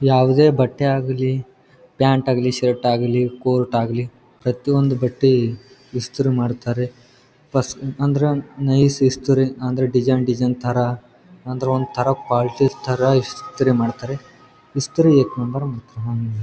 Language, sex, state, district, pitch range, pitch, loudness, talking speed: Kannada, male, Karnataka, Gulbarga, 125-135 Hz, 130 Hz, -19 LUFS, 115 wpm